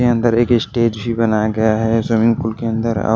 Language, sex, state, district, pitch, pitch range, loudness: Hindi, male, Bihar, Kaimur, 115 Hz, 110-115 Hz, -16 LUFS